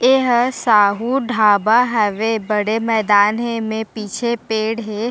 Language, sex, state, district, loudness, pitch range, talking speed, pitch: Chhattisgarhi, female, Chhattisgarh, Raigarh, -17 LUFS, 215-235 Hz, 130 wpm, 225 Hz